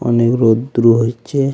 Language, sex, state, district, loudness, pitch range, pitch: Bengali, male, West Bengal, Alipurduar, -14 LUFS, 115-125 Hz, 120 Hz